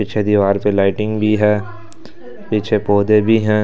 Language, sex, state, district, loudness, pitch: Hindi, male, Delhi, New Delhi, -15 LUFS, 105 Hz